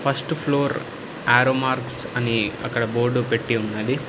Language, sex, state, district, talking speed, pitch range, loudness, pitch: Telugu, male, Telangana, Hyderabad, 130 wpm, 115-140 Hz, -22 LUFS, 125 Hz